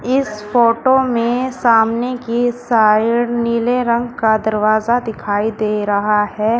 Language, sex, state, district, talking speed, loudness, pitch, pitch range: Hindi, female, Uttar Pradesh, Shamli, 125 wpm, -16 LUFS, 230 Hz, 215-240 Hz